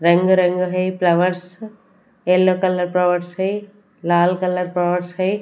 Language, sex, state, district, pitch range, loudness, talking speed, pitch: Hindi, female, Punjab, Kapurthala, 180-190 Hz, -18 LUFS, 135 wpm, 180 Hz